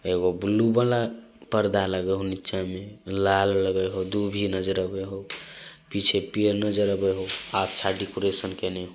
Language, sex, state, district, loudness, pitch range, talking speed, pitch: Magahi, male, Bihar, Samastipur, -24 LUFS, 95-105 Hz, 155 wpm, 95 Hz